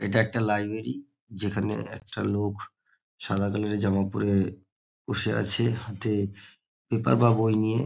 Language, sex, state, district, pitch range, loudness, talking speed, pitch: Bengali, male, West Bengal, North 24 Parganas, 100-110 Hz, -27 LUFS, 145 wpm, 105 Hz